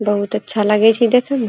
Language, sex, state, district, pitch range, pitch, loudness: Angika, female, Bihar, Purnia, 210-240 Hz, 220 Hz, -15 LUFS